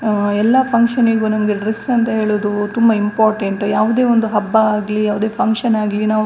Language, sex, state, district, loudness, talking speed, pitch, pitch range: Kannada, female, Karnataka, Dakshina Kannada, -16 LUFS, 175 wpm, 215 Hz, 210-230 Hz